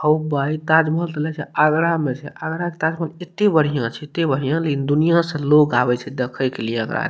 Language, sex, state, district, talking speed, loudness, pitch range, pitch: Maithili, male, Bihar, Madhepura, 230 wpm, -20 LUFS, 140-160 Hz, 150 Hz